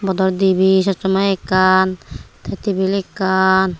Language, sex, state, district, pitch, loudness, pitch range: Chakma, female, Tripura, Unakoti, 190 Hz, -16 LUFS, 185-195 Hz